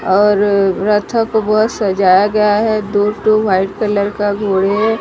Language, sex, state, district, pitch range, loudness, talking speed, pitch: Hindi, female, Odisha, Sambalpur, 200-215 Hz, -14 LUFS, 155 wpm, 205 Hz